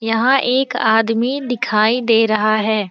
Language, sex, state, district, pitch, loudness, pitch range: Hindi, female, Bihar, Saran, 225 Hz, -16 LUFS, 215-250 Hz